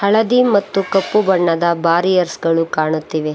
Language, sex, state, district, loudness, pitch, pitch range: Kannada, female, Karnataka, Bangalore, -15 LUFS, 180 Hz, 165-200 Hz